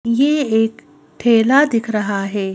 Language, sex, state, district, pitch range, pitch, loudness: Hindi, female, Madhya Pradesh, Bhopal, 200-240 Hz, 225 Hz, -16 LUFS